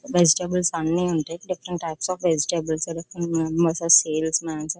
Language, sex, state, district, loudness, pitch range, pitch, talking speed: Telugu, female, Andhra Pradesh, Visakhapatnam, -22 LUFS, 160-175 Hz, 170 Hz, 115 wpm